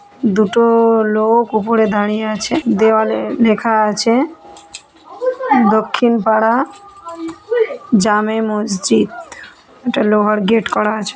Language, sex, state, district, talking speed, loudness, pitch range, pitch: Bengali, female, West Bengal, North 24 Parganas, 90 wpm, -14 LUFS, 215-255 Hz, 225 Hz